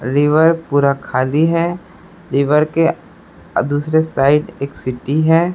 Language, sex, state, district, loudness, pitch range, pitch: Hindi, male, Chhattisgarh, Raipur, -16 LUFS, 140-165 Hz, 150 Hz